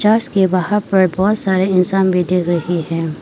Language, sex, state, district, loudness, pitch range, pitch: Hindi, female, Arunachal Pradesh, Papum Pare, -15 LUFS, 175-195 Hz, 185 Hz